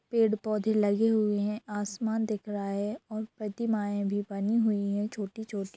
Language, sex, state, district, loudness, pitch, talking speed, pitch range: Hindi, female, Bihar, Darbhanga, -30 LUFS, 210 Hz, 155 wpm, 205-220 Hz